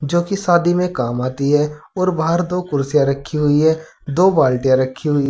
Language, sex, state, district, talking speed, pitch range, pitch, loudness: Hindi, male, Uttar Pradesh, Saharanpur, 205 wpm, 140-175 Hz, 150 Hz, -17 LUFS